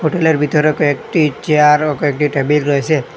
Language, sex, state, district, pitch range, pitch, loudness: Bengali, male, Assam, Hailakandi, 145-155 Hz, 150 Hz, -14 LUFS